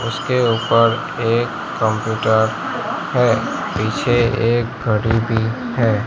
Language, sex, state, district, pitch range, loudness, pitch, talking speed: Hindi, male, Gujarat, Gandhinagar, 110-120 Hz, -18 LUFS, 115 Hz, 100 wpm